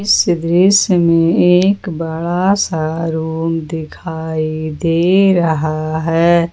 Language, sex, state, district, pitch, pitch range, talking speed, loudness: Hindi, female, Jharkhand, Ranchi, 165 Hz, 160-180 Hz, 110 wpm, -14 LUFS